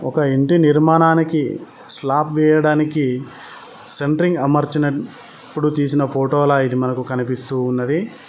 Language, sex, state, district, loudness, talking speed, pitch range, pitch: Telugu, male, Telangana, Mahabubabad, -17 LUFS, 100 wpm, 135-155 Hz, 145 Hz